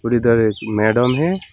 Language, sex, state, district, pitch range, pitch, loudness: Hindi, male, West Bengal, Alipurduar, 110-125 Hz, 115 Hz, -17 LUFS